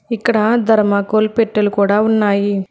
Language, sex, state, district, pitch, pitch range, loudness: Telugu, female, Telangana, Hyderabad, 215 Hz, 205-220 Hz, -15 LUFS